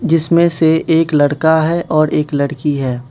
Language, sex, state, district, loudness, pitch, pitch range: Hindi, male, Manipur, Imphal West, -14 LUFS, 155 Hz, 145-165 Hz